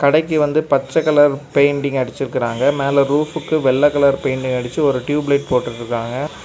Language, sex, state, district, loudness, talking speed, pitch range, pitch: Tamil, male, Tamil Nadu, Kanyakumari, -17 LUFS, 160 wpm, 130-150 Hz, 140 Hz